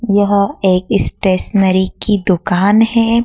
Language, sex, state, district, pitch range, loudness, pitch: Hindi, female, Madhya Pradesh, Dhar, 185-215 Hz, -13 LUFS, 200 Hz